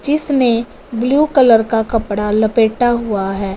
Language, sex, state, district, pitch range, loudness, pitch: Hindi, female, Punjab, Fazilka, 215-255 Hz, -14 LUFS, 230 Hz